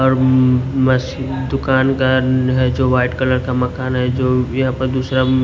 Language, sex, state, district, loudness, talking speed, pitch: Hindi, male, Odisha, Nuapada, -16 LUFS, 185 wpm, 130 Hz